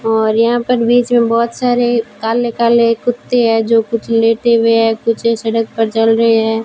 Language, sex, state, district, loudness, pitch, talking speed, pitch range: Hindi, female, Rajasthan, Bikaner, -13 LUFS, 230 Hz, 200 wpm, 225-235 Hz